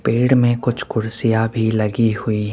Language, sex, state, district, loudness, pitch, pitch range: Hindi, male, Rajasthan, Jaipur, -18 LUFS, 115 Hz, 110-120 Hz